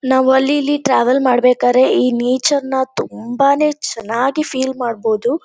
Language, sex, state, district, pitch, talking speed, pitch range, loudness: Kannada, female, Karnataka, Shimoga, 260 Hz, 120 wpm, 250-285 Hz, -15 LUFS